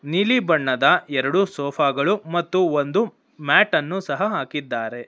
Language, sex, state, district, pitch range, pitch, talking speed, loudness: Kannada, female, Karnataka, Bangalore, 140-190 Hz, 155 Hz, 130 wpm, -20 LUFS